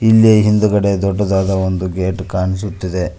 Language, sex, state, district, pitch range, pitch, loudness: Kannada, male, Karnataka, Koppal, 95-105 Hz, 95 Hz, -15 LUFS